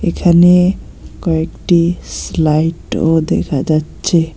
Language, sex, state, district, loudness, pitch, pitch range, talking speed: Bengali, male, West Bengal, Alipurduar, -14 LUFS, 170 Hz, 160-175 Hz, 70 wpm